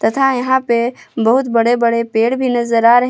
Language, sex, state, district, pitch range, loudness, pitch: Hindi, female, Jharkhand, Palamu, 230-255 Hz, -14 LUFS, 240 Hz